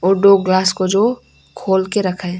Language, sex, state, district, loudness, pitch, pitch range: Hindi, female, Arunachal Pradesh, Longding, -15 LUFS, 190 Hz, 185-200 Hz